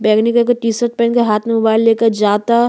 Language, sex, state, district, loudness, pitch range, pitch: Bhojpuri, female, Uttar Pradesh, Gorakhpur, -14 LUFS, 220-235 Hz, 230 Hz